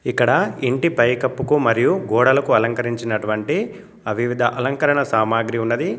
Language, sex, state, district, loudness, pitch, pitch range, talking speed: Telugu, male, Telangana, Komaram Bheem, -19 LUFS, 120 Hz, 115-130 Hz, 110 wpm